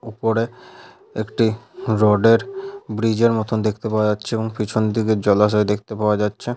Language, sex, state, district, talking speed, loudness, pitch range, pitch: Bengali, male, West Bengal, Malda, 155 wpm, -20 LUFS, 105-115 Hz, 110 Hz